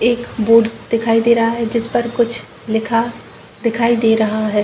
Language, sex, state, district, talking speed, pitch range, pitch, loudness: Hindi, female, Jharkhand, Jamtara, 180 wpm, 225-235 Hz, 230 Hz, -16 LUFS